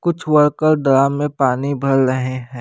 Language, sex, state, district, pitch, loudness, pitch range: Hindi, male, Bihar, West Champaran, 140 Hz, -16 LUFS, 130-150 Hz